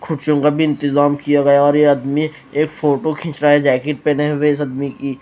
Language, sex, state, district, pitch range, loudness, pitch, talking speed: Hindi, female, Punjab, Fazilka, 145-150 Hz, -16 LUFS, 145 Hz, 230 wpm